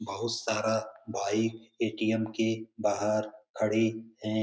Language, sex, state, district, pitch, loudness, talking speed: Hindi, male, Bihar, Lakhisarai, 110 Hz, -31 LUFS, 120 wpm